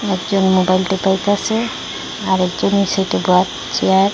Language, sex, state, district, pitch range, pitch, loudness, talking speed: Bengali, female, Assam, Hailakandi, 185-200 Hz, 190 Hz, -16 LUFS, 115 wpm